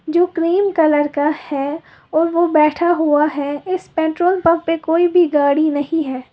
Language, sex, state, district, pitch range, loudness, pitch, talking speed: Hindi, female, Uttar Pradesh, Lalitpur, 295-340 Hz, -16 LUFS, 320 Hz, 180 wpm